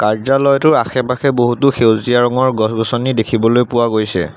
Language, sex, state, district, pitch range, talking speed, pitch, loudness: Assamese, male, Assam, Sonitpur, 110-130 Hz, 135 wpm, 120 Hz, -14 LUFS